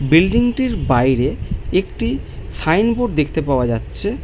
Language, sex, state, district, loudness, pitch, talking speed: Bengali, male, West Bengal, Malda, -18 LUFS, 155 Hz, 140 wpm